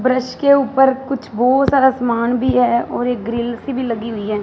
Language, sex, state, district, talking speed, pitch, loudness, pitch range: Hindi, female, Punjab, Fazilka, 230 wpm, 250 Hz, -16 LUFS, 235-265 Hz